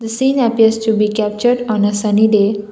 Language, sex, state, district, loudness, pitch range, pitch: English, female, Assam, Kamrup Metropolitan, -14 LUFS, 210-230 Hz, 220 Hz